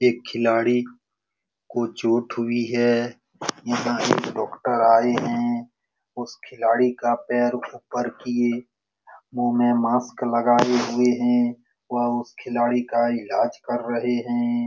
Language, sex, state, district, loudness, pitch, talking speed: Hindi, male, Bihar, Lakhisarai, -22 LUFS, 120 Hz, 125 wpm